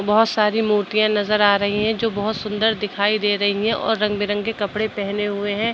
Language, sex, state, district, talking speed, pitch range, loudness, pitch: Hindi, female, Uttar Pradesh, Budaun, 220 wpm, 205-220 Hz, -20 LUFS, 210 Hz